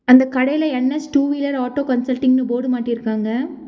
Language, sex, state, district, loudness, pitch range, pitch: Tamil, female, Tamil Nadu, Nilgiris, -18 LUFS, 250-280 Hz, 255 Hz